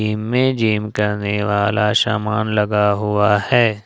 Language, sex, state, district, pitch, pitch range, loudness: Hindi, male, Jharkhand, Ranchi, 105 Hz, 105-110 Hz, -17 LUFS